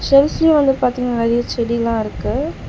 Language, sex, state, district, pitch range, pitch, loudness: Tamil, female, Tamil Nadu, Chennai, 235-275 Hz, 245 Hz, -17 LUFS